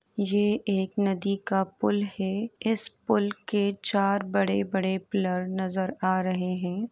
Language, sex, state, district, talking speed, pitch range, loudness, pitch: Hindi, female, Uttar Pradesh, Etah, 145 wpm, 185-205 Hz, -27 LUFS, 195 Hz